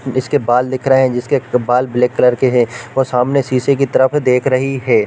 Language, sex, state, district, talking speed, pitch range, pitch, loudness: Hindi, male, Chhattisgarh, Bilaspur, 235 wpm, 125-135 Hz, 130 Hz, -14 LUFS